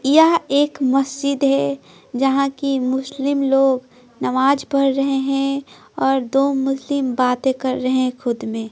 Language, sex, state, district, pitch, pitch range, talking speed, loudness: Hindi, female, Bihar, Patna, 270 Hz, 255-275 Hz, 135 wpm, -19 LUFS